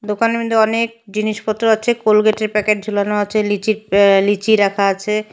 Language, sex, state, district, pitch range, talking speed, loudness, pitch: Bengali, female, Assam, Hailakandi, 205-220 Hz, 155 wpm, -16 LUFS, 215 Hz